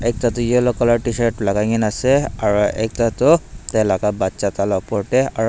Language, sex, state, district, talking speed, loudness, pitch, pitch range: Nagamese, male, Nagaland, Dimapur, 185 wpm, -18 LUFS, 110 Hz, 105-120 Hz